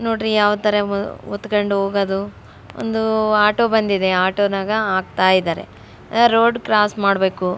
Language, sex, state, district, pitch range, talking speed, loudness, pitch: Kannada, female, Karnataka, Raichur, 190-220 Hz, 120 wpm, -18 LUFS, 205 Hz